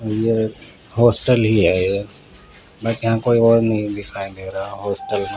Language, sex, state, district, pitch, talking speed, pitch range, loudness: Hindi, male, Bihar, Patna, 110 Hz, 180 wpm, 100-115 Hz, -19 LUFS